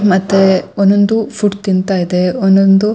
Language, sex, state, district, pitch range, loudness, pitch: Kannada, female, Karnataka, Shimoga, 190-205 Hz, -12 LUFS, 195 Hz